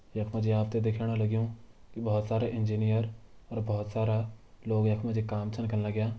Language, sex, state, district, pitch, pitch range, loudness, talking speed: Garhwali, male, Uttarakhand, Tehri Garhwal, 110 Hz, 110-115 Hz, -31 LUFS, 225 wpm